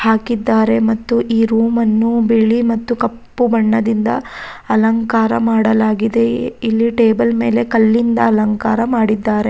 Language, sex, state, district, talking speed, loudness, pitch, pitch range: Kannada, female, Karnataka, Raichur, 105 wpm, -15 LUFS, 225 Hz, 220-230 Hz